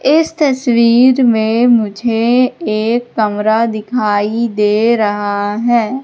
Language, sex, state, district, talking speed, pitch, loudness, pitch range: Hindi, female, Madhya Pradesh, Katni, 100 wpm, 230 Hz, -13 LUFS, 215-245 Hz